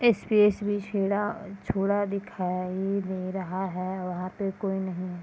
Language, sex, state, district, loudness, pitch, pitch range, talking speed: Hindi, female, Bihar, Purnia, -28 LUFS, 195 Hz, 185-205 Hz, 115 wpm